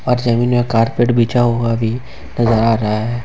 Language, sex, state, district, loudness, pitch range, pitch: Hindi, male, Jharkhand, Ranchi, -15 LUFS, 115-120 Hz, 120 Hz